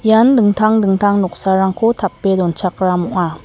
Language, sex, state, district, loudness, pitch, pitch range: Garo, female, Meghalaya, West Garo Hills, -14 LUFS, 195 Hz, 185-215 Hz